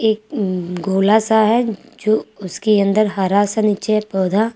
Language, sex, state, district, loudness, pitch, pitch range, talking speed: Hindi, female, Jharkhand, Garhwa, -17 LUFS, 210 Hz, 195-220 Hz, 155 wpm